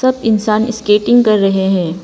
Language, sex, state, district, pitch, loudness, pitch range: Hindi, female, Arunachal Pradesh, Papum Pare, 215 Hz, -13 LUFS, 195-230 Hz